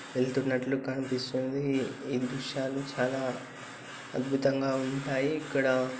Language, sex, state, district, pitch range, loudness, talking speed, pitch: Telugu, male, Telangana, Nalgonda, 130-135 Hz, -31 LUFS, 90 wpm, 135 Hz